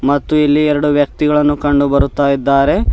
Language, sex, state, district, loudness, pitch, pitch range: Kannada, male, Karnataka, Bidar, -13 LUFS, 145 Hz, 140-150 Hz